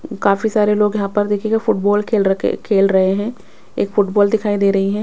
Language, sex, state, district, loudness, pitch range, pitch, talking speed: Hindi, female, Bihar, West Champaran, -16 LUFS, 200-210 Hz, 205 Hz, 225 wpm